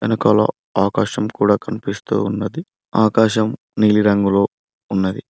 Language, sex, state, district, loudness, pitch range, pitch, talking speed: Telugu, male, Telangana, Mahabubabad, -18 LUFS, 100-110 Hz, 105 Hz, 90 wpm